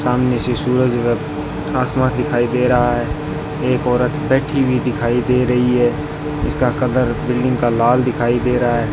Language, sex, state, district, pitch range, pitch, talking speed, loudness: Hindi, male, Rajasthan, Bikaner, 120-130 Hz, 125 Hz, 170 wpm, -17 LUFS